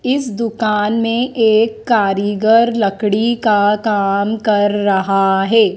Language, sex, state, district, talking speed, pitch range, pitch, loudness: Hindi, female, Madhya Pradesh, Dhar, 125 wpm, 205-230 Hz, 215 Hz, -15 LUFS